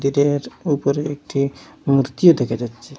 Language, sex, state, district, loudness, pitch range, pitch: Bengali, male, Assam, Hailakandi, -19 LUFS, 135-145 Hz, 140 Hz